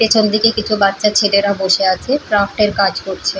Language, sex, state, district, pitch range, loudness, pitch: Bengali, female, West Bengal, Paschim Medinipur, 195-215 Hz, -14 LUFS, 205 Hz